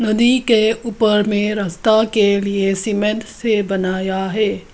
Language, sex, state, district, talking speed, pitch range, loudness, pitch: Hindi, female, Arunachal Pradesh, Lower Dibang Valley, 140 wpm, 200-220 Hz, -17 LUFS, 210 Hz